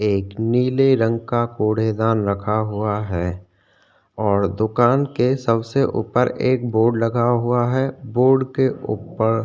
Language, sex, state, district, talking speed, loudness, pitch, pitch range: Hindi, male, Uttarakhand, Tehri Garhwal, 145 wpm, -20 LUFS, 115 Hz, 105-125 Hz